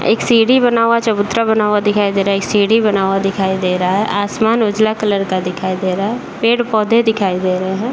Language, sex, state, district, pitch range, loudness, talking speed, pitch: Hindi, male, Bihar, Saran, 195-225 Hz, -15 LUFS, 250 wpm, 205 Hz